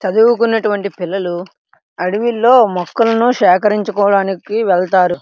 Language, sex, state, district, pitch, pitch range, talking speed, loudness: Telugu, male, Andhra Pradesh, Srikakulam, 205 Hz, 180-225 Hz, 105 wpm, -14 LUFS